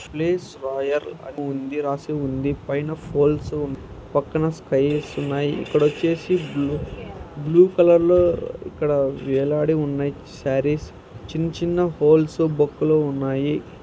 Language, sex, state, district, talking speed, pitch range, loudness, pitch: Telugu, male, Andhra Pradesh, Anantapur, 105 wpm, 140-160 Hz, -21 LUFS, 150 Hz